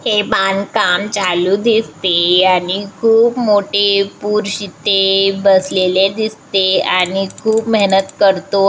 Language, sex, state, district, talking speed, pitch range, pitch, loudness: Marathi, female, Maharashtra, Chandrapur, 105 wpm, 190-210 Hz, 195 Hz, -14 LUFS